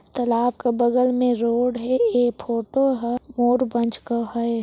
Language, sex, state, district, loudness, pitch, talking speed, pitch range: Hindi, female, Chhattisgarh, Sarguja, -21 LUFS, 240 Hz, 170 wpm, 235-250 Hz